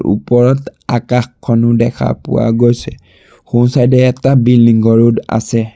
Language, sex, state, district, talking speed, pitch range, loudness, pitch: Assamese, male, Assam, Sonitpur, 115 wpm, 115-125 Hz, -12 LUFS, 120 Hz